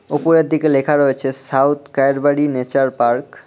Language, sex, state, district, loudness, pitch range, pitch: Bengali, male, West Bengal, Cooch Behar, -16 LUFS, 135-145 Hz, 140 Hz